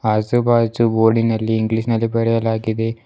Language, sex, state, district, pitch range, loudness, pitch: Kannada, male, Karnataka, Bidar, 110-115 Hz, -17 LUFS, 115 Hz